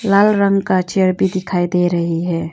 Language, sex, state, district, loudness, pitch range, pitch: Hindi, female, Arunachal Pradesh, Longding, -16 LUFS, 175-195 Hz, 185 Hz